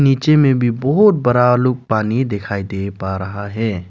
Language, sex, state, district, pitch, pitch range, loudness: Hindi, male, Arunachal Pradesh, Lower Dibang Valley, 120 Hz, 100-130 Hz, -16 LUFS